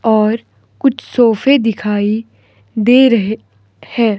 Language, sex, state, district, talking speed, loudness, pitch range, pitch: Hindi, male, Himachal Pradesh, Shimla, 100 wpm, -13 LUFS, 205-235 Hz, 220 Hz